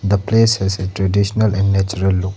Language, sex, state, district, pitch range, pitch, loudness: English, male, Arunachal Pradesh, Lower Dibang Valley, 95-100 Hz, 100 Hz, -16 LUFS